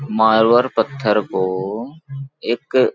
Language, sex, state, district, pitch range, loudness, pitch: Hindi, male, Chhattisgarh, Balrampur, 110-135 Hz, -17 LUFS, 120 Hz